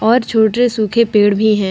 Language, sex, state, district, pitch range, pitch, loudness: Hindi, female, Bihar, Vaishali, 210-235 Hz, 220 Hz, -13 LUFS